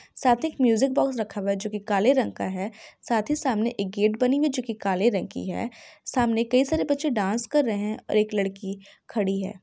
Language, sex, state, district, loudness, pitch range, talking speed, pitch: Hindi, female, Bihar, Jahanabad, -25 LUFS, 205-265 Hz, 250 wpm, 230 Hz